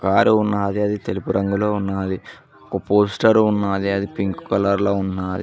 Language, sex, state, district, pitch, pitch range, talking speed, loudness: Telugu, male, Telangana, Mahabubabad, 100 Hz, 95-105 Hz, 155 wpm, -20 LUFS